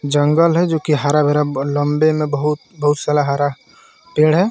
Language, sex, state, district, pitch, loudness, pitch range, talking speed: Hindi, male, Jharkhand, Garhwa, 150 Hz, -16 LUFS, 145-160 Hz, 175 wpm